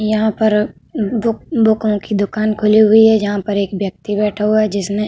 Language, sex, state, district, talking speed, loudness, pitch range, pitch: Hindi, female, Uttar Pradesh, Budaun, 210 wpm, -15 LUFS, 205-220 Hz, 215 Hz